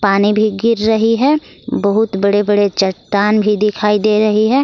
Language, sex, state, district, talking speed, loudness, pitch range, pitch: Hindi, female, Jharkhand, Garhwa, 180 wpm, -14 LUFS, 205-220 Hz, 210 Hz